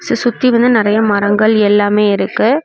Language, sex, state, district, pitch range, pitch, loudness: Tamil, female, Tamil Nadu, Namakkal, 205-240 Hz, 215 Hz, -12 LUFS